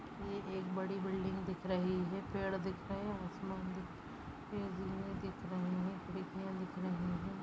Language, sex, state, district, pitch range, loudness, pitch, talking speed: Hindi, female, Chhattisgarh, Rajnandgaon, 185-195 Hz, -41 LUFS, 190 Hz, 135 wpm